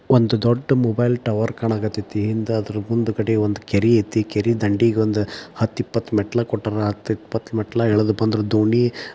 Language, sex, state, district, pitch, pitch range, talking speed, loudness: Kannada, male, Karnataka, Dharwad, 110 Hz, 105-115 Hz, 145 wpm, -20 LUFS